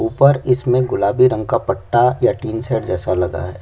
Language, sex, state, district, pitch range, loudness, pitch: Hindi, male, Chhattisgarh, Kabirdham, 95-125 Hz, -17 LUFS, 115 Hz